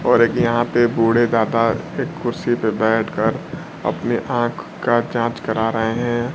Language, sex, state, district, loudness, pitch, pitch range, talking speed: Hindi, male, Bihar, Kaimur, -19 LUFS, 120 Hz, 115-120 Hz, 170 wpm